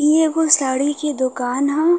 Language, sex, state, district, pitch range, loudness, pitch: Bhojpuri, female, Uttar Pradesh, Varanasi, 265-315 Hz, -17 LUFS, 295 Hz